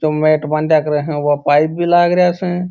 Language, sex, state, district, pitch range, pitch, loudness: Marwari, male, Rajasthan, Churu, 150-175 Hz, 155 Hz, -14 LUFS